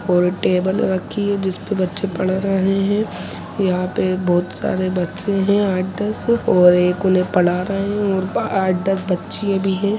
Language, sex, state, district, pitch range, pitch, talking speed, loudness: Hindi, male, Chhattisgarh, Rajnandgaon, 180-200 Hz, 190 Hz, 185 wpm, -19 LUFS